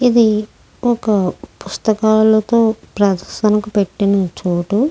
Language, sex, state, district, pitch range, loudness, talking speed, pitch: Telugu, female, Andhra Pradesh, Krishna, 200-220 Hz, -16 LUFS, 85 wpm, 215 Hz